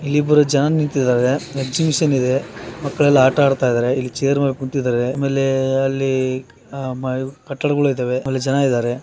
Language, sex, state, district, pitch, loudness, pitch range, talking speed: Kannada, male, Karnataka, Raichur, 135 Hz, -18 LUFS, 130-140 Hz, 135 wpm